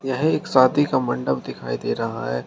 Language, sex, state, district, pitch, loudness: Hindi, male, Uttar Pradesh, Shamli, 130 Hz, -21 LUFS